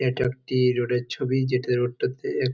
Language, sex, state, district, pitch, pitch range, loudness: Bengali, male, West Bengal, Jalpaiguri, 125 Hz, 125-130 Hz, -25 LUFS